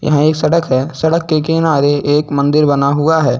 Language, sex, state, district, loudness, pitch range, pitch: Hindi, male, Uttar Pradesh, Lucknow, -13 LUFS, 140-160 Hz, 150 Hz